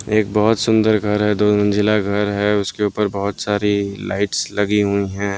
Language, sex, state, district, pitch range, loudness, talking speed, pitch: Hindi, male, Bihar, West Champaran, 100-105 Hz, -18 LUFS, 190 wpm, 105 Hz